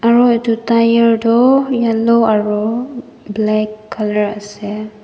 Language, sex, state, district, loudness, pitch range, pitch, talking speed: Nagamese, female, Nagaland, Dimapur, -14 LUFS, 215-235 Hz, 225 Hz, 105 wpm